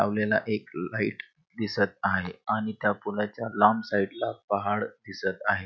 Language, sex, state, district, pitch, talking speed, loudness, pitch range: Marathi, male, Maharashtra, Pune, 105 Hz, 150 wpm, -28 LUFS, 100-110 Hz